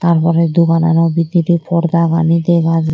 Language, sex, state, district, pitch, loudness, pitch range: Chakma, female, Tripura, Dhalai, 165 Hz, -13 LUFS, 165-170 Hz